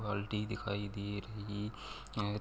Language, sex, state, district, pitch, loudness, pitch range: Hindi, male, Jharkhand, Sahebganj, 105 Hz, -40 LUFS, 100-105 Hz